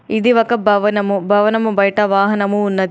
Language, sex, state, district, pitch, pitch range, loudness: Telugu, female, Telangana, Adilabad, 205 Hz, 200-220 Hz, -15 LUFS